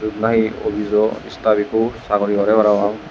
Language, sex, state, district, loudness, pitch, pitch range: Chakma, male, Tripura, West Tripura, -18 LUFS, 110 Hz, 105-110 Hz